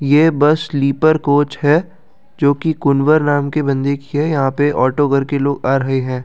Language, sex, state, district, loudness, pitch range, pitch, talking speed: Hindi, male, Delhi, New Delhi, -15 LUFS, 140-150 Hz, 145 Hz, 210 wpm